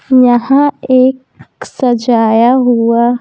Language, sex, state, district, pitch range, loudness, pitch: Hindi, female, Bihar, Patna, 235-260 Hz, -10 LUFS, 245 Hz